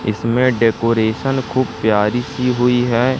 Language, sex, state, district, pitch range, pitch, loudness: Hindi, male, Madhya Pradesh, Katni, 110-125 Hz, 120 Hz, -16 LUFS